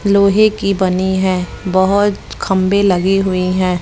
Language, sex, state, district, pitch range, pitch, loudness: Hindi, female, Bihar, West Champaran, 185-200 Hz, 190 Hz, -14 LUFS